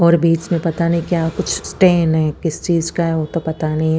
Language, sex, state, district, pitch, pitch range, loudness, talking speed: Hindi, female, Chandigarh, Chandigarh, 165 Hz, 160-170 Hz, -17 LUFS, 270 wpm